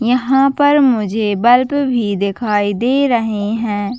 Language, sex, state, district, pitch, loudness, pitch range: Hindi, female, Chhattisgarh, Bastar, 235 Hz, -14 LUFS, 205-260 Hz